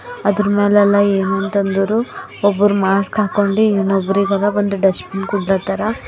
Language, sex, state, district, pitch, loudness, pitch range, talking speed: Kannada, female, Karnataka, Bidar, 200 Hz, -16 LUFS, 195-205 Hz, 120 wpm